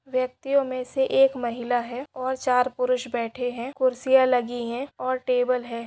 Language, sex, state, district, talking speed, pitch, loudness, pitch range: Hindi, female, Bihar, Saran, 175 wpm, 255 Hz, -24 LUFS, 245-260 Hz